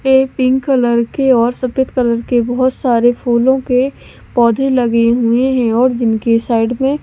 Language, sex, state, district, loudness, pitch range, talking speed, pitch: Hindi, female, Bihar, West Champaran, -14 LUFS, 235-260 Hz, 170 wpm, 250 Hz